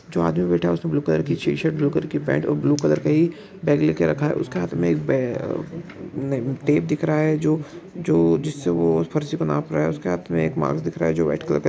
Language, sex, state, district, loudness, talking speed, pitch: Maithili, male, Bihar, Araria, -22 LUFS, 275 wpm, 90 Hz